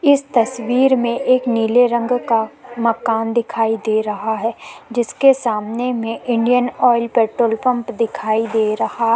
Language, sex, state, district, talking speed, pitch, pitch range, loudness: Hindi, female, Uttarakhand, Tehri Garhwal, 145 wpm, 235 Hz, 225-245 Hz, -17 LUFS